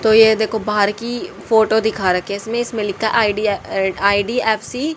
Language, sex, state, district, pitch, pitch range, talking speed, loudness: Hindi, female, Haryana, Jhajjar, 220 Hz, 200-225 Hz, 170 wpm, -17 LUFS